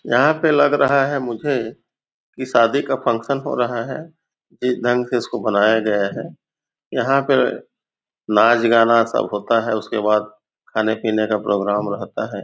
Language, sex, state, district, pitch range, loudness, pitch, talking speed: Hindi, male, Chhattisgarh, Raigarh, 110-135 Hz, -18 LUFS, 115 Hz, 170 wpm